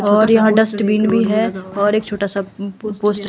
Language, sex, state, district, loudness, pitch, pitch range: Hindi, female, Himachal Pradesh, Shimla, -16 LUFS, 210 Hz, 205-215 Hz